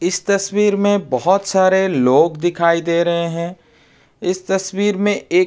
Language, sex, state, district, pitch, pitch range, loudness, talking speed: Hindi, male, Uttar Pradesh, Jalaun, 185 Hz, 170-200 Hz, -17 LUFS, 165 wpm